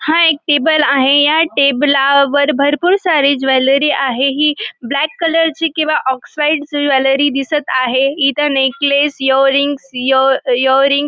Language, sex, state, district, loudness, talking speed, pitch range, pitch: Marathi, female, Maharashtra, Dhule, -13 LUFS, 145 wpm, 270-300 Hz, 280 Hz